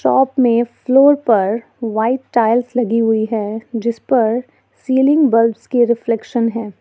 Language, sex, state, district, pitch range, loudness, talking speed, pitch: Hindi, female, Jharkhand, Ranchi, 225-255 Hz, -16 LUFS, 130 wpm, 235 Hz